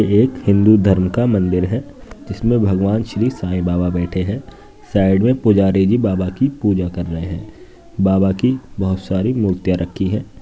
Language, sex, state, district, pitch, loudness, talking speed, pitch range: Hindi, male, Uttar Pradesh, Jyotiba Phule Nagar, 100 Hz, -17 LUFS, 180 wpm, 95-110 Hz